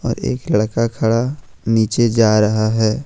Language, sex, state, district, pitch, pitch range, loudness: Hindi, male, Jharkhand, Ranchi, 110 Hz, 110-115 Hz, -17 LUFS